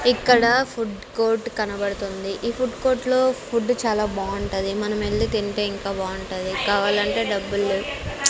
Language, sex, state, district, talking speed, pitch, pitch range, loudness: Telugu, female, Andhra Pradesh, Sri Satya Sai, 130 wpm, 210 Hz, 200-235 Hz, -23 LUFS